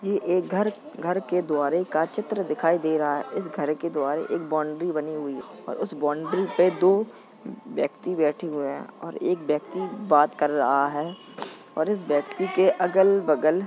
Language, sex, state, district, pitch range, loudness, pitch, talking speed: Hindi, male, Uttar Pradesh, Jalaun, 150-190 Hz, -25 LUFS, 170 Hz, 190 wpm